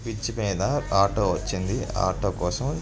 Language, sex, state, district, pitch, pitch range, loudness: Telugu, male, Andhra Pradesh, Srikakulam, 100 Hz, 95-115 Hz, -25 LUFS